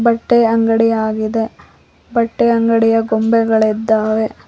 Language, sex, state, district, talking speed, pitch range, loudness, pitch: Kannada, female, Karnataka, Koppal, 80 wpm, 220-230 Hz, -14 LUFS, 225 Hz